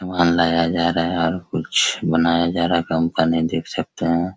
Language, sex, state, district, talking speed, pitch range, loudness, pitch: Hindi, male, Bihar, Araria, 205 wpm, 80-85 Hz, -19 LUFS, 85 Hz